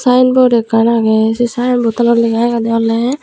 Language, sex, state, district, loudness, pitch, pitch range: Chakma, female, Tripura, Unakoti, -12 LUFS, 235 Hz, 230-245 Hz